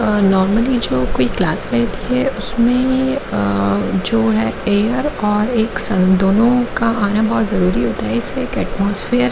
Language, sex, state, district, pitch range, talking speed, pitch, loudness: Hindi, female, Jharkhand, Jamtara, 190-235 Hz, 140 wpm, 215 Hz, -16 LUFS